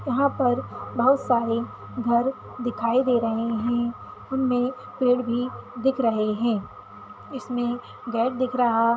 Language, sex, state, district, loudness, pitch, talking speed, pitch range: Hindi, female, Chhattisgarh, Raigarh, -24 LUFS, 245 Hz, 125 wpm, 235-255 Hz